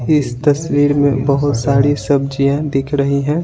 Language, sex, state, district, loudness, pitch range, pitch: Hindi, male, Bihar, Patna, -15 LUFS, 140-145 Hz, 140 Hz